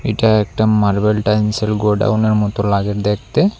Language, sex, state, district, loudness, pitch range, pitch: Bengali, male, Tripura, Unakoti, -16 LUFS, 105-110 Hz, 105 Hz